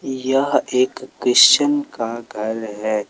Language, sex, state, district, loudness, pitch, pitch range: Hindi, male, Jharkhand, Palamu, -18 LUFS, 125 Hz, 110-135 Hz